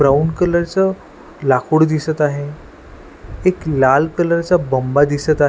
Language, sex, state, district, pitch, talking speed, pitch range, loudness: Marathi, male, Maharashtra, Washim, 155 Hz, 140 wpm, 145-170 Hz, -16 LUFS